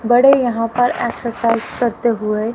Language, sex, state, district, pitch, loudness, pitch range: Hindi, female, Haryana, Rohtak, 235 Hz, -17 LUFS, 230-245 Hz